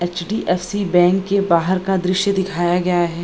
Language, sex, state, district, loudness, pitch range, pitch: Hindi, female, Bihar, Gaya, -18 LUFS, 175-190 Hz, 180 Hz